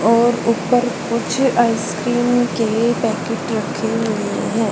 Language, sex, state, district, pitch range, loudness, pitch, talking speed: Hindi, female, Haryana, Charkhi Dadri, 225-240 Hz, -18 LUFS, 235 Hz, 115 wpm